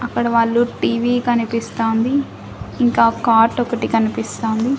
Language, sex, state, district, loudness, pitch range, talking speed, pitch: Telugu, female, Andhra Pradesh, Annamaya, -17 LUFS, 230-240 Hz, 100 wpm, 235 Hz